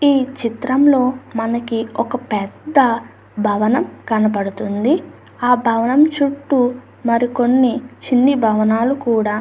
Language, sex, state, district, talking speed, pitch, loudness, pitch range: Telugu, female, Andhra Pradesh, Anantapur, 95 wpm, 245 Hz, -17 LUFS, 225-265 Hz